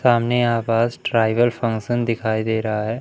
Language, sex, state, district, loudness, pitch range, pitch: Hindi, male, Madhya Pradesh, Umaria, -20 LUFS, 110-120 Hz, 115 Hz